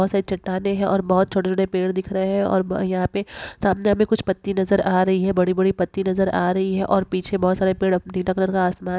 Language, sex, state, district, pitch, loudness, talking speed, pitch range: Hindi, female, Bihar, Jamui, 190 Hz, -21 LUFS, 245 wpm, 185-195 Hz